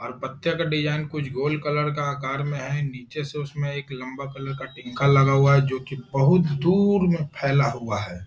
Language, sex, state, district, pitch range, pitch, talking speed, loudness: Hindi, male, Bihar, Jahanabad, 130-150 Hz, 140 Hz, 220 wpm, -23 LUFS